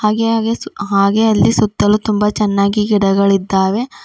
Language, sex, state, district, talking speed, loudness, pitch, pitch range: Kannada, female, Karnataka, Bidar, 135 wpm, -14 LUFS, 210 Hz, 200-215 Hz